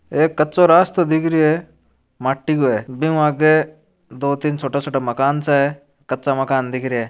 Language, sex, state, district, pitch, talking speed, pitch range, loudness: Marwari, male, Rajasthan, Churu, 145 Hz, 195 wpm, 135-155 Hz, -18 LUFS